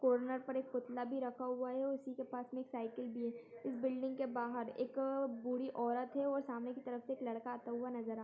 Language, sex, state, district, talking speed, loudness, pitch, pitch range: Hindi, female, Chhattisgarh, Kabirdham, 255 wpm, -41 LUFS, 250 Hz, 240-260 Hz